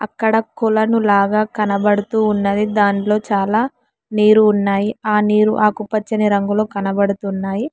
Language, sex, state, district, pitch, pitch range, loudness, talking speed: Telugu, female, Telangana, Hyderabad, 210 Hz, 200-215 Hz, -16 LUFS, 110 wpm